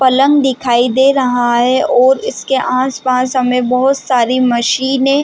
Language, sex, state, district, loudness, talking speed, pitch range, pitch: Hindi, female, Chhattisgarh, Bilaspur, -12 LUFS, 135 wpm, 250-270 Hz, 255 Hz